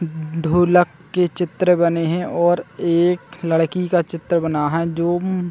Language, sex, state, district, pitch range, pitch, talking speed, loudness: Hindi, male, Chhattisgarh, Bilaspur, 165-175 Hz, 170 Hz, 150 wpm, -19 LUFS